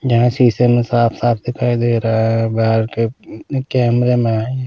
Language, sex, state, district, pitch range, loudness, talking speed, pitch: Hindi, male, Punjab, Pathankot, 115-125 Hz, -16 LUFS, 165 wpm, 120 Hz